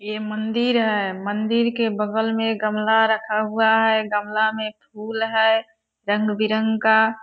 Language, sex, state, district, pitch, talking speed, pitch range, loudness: Hindi, female, Bihar, Purnia, 220 Hz, 140 wpm, 215-225 Hz, -21 LUFS